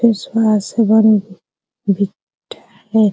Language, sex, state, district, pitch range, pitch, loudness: Hindi, female, Bihar, Araria, 200-225 Hz, 220 Hz, -15 LUFS